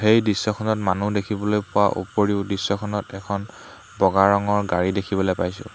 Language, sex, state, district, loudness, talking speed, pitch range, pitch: Assamese, male, Assam, Hailakandi, -22 LUFS, 135 wpm, 95-105 Hz, 100 Hz